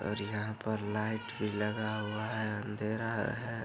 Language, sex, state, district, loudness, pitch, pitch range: Hindi, male, Bihar, Araria, -36 LUFS, 110 Hz, 105-110 Hz